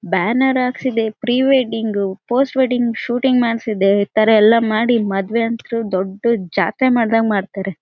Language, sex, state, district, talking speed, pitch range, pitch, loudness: Kannada, female, Karnataka, Bellary, 125 wpm, 200-245 Hz, 225 Hz, -17 LUFS